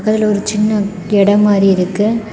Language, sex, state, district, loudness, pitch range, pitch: Tamil, female, Tamil Nadu, Kanyakumari, -13 LUFS, 200-215 Hz, 205 Hz